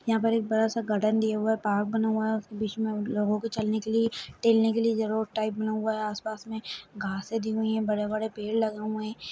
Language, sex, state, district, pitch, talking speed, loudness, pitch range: Hindi, female, Chhattisgarh, Kabirdham, 220 Hz, 250 wpm, -28 LUFS, 215-225 Hz